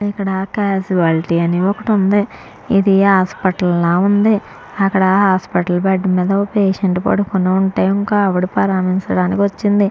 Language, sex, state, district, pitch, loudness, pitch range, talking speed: Telugu, female, Andhra Pradesh, Chittoor, 195 Hz, -15 LUFS, 185-200 Hz, 120 wpm